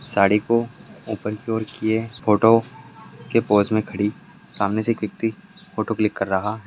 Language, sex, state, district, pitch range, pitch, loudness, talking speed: Hindi, male, Karnataka, Raichur, 105-115 Hz, 110 Hz, -22 LUFS, 170 wpm